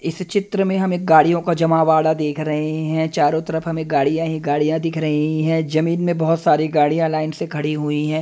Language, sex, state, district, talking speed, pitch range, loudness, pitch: Hindi, male, Himachal Pradesh, Shimla, 210 wpm, 155-165 Hz, -18 LUFS, 160 Hz